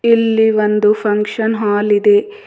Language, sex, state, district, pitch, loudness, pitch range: Kannada, female, Karnataka, Bidar, 220 Hz, -14 LUFS, 210-230 Hz